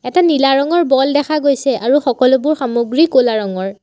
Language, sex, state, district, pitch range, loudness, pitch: Assamese, female, Assam, Sonitpur, 250-295 Hz, -14 LUFS, 270 Hz